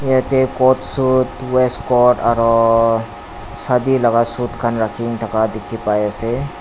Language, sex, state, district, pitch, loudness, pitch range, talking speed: Nagamese, male, Nagaland, Dimapur, 115 Hz, -16 LUFS, 115-130 Hz, 120 wpm